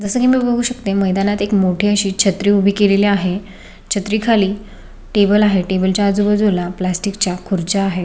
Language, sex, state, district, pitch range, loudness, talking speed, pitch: Marathi, female, Maharashtra, Sindhudurg, 195-205 Hz, -16 LUFS, 180 wpm, 200 Hz